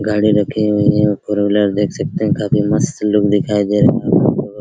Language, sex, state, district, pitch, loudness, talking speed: Hindi, male, Bihar, Araria, 105 Hz, -15 LUFS, 270 wpm